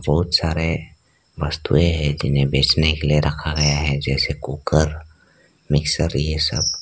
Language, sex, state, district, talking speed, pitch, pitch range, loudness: Hindi, male, Arunachal Pradesh, Lower Dibang Valley, 140 wpm, 75 Hz, 75-80 Hz, -19 LUFS